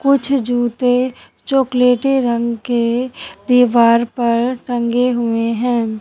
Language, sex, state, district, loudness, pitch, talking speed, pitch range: Hindi, female, Haryana, Jhajjar, -16 LUFS, 245 Hz, 100 wpm, 235-250 Hz